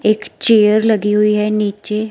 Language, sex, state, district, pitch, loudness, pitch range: Hindi, female, Himachal Pradesh, Shimla, 215 Hz, -14 LUFS, 210-215 Hz